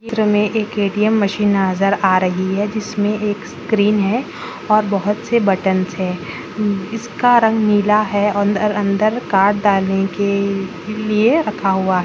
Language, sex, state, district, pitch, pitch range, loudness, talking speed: Hindi, female, Bihar, Bhagalpur, 205 Hz, 195-215 Hz, -17 LUFS, 155 wpm